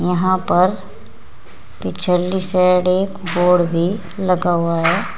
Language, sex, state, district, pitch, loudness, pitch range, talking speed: Hindi, female, Uttar Pradesh, Saharanpur, 180 Hz, -16 LUFS, 175-185 Hz, 115 wpm